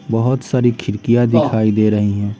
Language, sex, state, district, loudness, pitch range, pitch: Hindi, male, Bihar, Patna, -16 LUFS, 105-120 Hz, 115 Hz